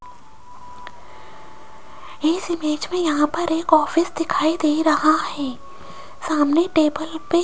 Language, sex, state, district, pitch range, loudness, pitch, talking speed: Hindi, female, Rajasthan, Jaipur, 300-345 Hz, -20 LUFS, 320 Hz, 120 wpm